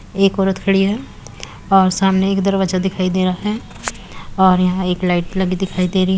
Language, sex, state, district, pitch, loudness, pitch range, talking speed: Hindi, female, Uttar Pradesh, Muzaffarnagar, 190 Hz, -17 LUFS, 185-195 Hz, 205 wpm